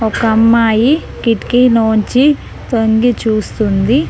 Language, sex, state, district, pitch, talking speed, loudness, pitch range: Telugu, female, Telangana, Mahabubabad, 225 Hz, 90 wpm, -12 LUFS, 220-245 Hz